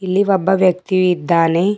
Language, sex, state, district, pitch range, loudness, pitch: Kannada, female, Karnataka, Bidar, 175-190 Hz, -15 LUFS, 185 Hz